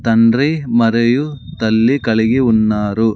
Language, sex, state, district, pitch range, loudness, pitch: Telugu, male, Andhra Pradesh, Sri Satya Sai, 110-130 Hz, -14 LUFS, 115 Hz